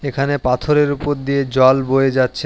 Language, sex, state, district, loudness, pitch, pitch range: Bengali, male, West Bengal, Alipurduar, -16 LUFS, 140 Hz, 130-145 Hz